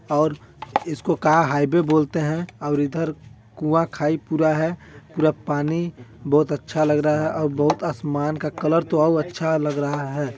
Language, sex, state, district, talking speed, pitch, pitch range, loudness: Hindi, male, Chhattisgarh, Balrampur, 175 wpm, 155 Hz, 145-160 Hz, -22 LUFS